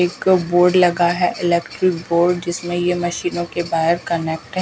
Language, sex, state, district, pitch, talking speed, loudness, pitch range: Hindi, female, Himachal Pradesh, Shimla, 175 Hz, 170 wpm, -18 LUFS, 170-180 Hz